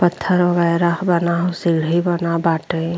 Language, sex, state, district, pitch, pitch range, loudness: Bhojpuri, female, Uttar Pradesh, Ghazipur, 170 Hz, 170-175 Hz, -18 LUFS